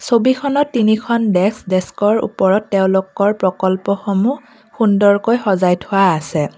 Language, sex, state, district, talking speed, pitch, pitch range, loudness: Assamese, female, Assam, Kamrup Metropolitan, 100 wpm, 200 Hz, 190-225 Hz, -15 LUFS